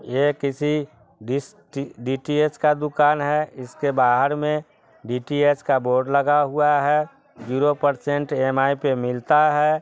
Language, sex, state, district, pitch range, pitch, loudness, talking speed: Hindi, male, Bihar, Sitamarhi, 130-150 Hz, 145 Hz, -21 LUFS, 145 wpm